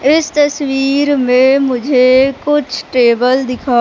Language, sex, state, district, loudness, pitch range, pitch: Hindi, female, Madhya Pradesh, Katni, -12 LUFS, 255-285 Hz, 270 Hz